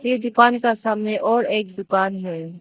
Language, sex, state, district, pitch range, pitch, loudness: Hindi, female, Arunachal Pradesh, Lower Dibang Valley, 190-235 Hz, 215 Hz, -20 LUFS